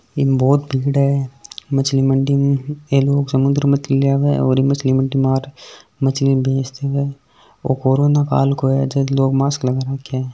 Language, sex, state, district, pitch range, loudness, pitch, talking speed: Marwari, male, Rajasthan, Nagaur, 135-140 Hz, -17 LUFS, 135 Hz, 140 wpm